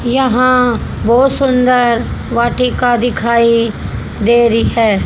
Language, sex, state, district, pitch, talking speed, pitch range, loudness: Hindi, female, Haryana, Jhajjar, 240 Hz, 95 wpm, 235-250 Hz, -12 LUFS